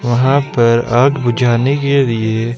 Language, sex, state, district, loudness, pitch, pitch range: Hindi, male, Himachal Pradesh, Shimla, -13 LUFS, 120 Hz, 115-140 Hz